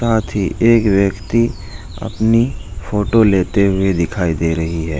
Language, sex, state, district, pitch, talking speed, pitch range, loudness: Hindi, male, Bihar, Jahanabad, 100 Hz, 155 wpm, 90-110 Hz, -16 LUFS